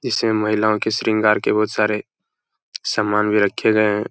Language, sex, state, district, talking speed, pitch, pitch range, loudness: Hindi, male, Uttar Pradesh, Hamirpur, 190 wpm, 105 Hz, 105-110 Hz, -19 LUFS